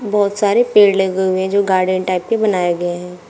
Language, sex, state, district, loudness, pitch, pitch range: Hindi, female, Uttar Pradesh, Shamli, -15 LUFS, 190 Hz, 185-205 Hz